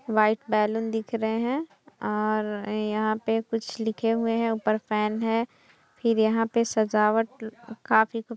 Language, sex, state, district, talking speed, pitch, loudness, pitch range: Hindi, female, Bihar, East Champaran, 160 wpm, 225 Hz, -26 LUFS, 215-230 Hz